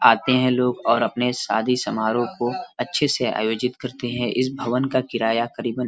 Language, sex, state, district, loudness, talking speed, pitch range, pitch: Hindi, male, Uttar Pradesh, Varanasi, -22 LUFS, 195 wpm, 120-130 Hz, 125 Hz